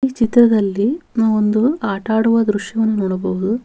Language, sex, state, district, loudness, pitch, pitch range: Kannada, female, Karnataka, Bellary, -16 LUFS, 220 Hz, 205-230 Hz